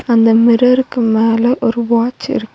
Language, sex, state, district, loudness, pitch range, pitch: Tamil, female, Tamil Nadu, Nilgiris, -13 LUFS, 225-250 Hz, 235 Hz